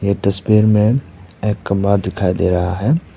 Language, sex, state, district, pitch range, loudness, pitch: Hindi, male, Arunachal Pradesh, Papum Pare, 95-105 Hz, -16 LUFS, 100 Hz